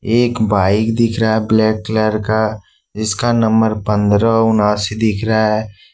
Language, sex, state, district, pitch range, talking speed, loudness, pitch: Hindi, male, Jharkhand, Ranchi, 105-110 Hz, 150 wpm, -15 LUFS, 110 Hz